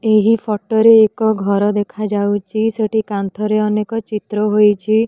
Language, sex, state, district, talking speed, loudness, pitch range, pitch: Odia, female, Odisha, Nuapada, 140 wpm, -16 LUFS, 205-220 Hz, 215 Hz